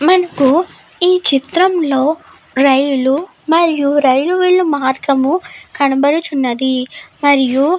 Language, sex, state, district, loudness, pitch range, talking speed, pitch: Telugu, female, Andhra Pradesh, Guntur, -14 LUFS, 270-340 Hz, 90 wpm, 285 Hz